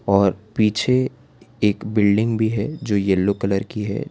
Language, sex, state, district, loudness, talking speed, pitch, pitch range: Hindi, male, Gujarat, Valsad, -20 LUFS, 160 wpm, 105 Hz, 100-115 Hz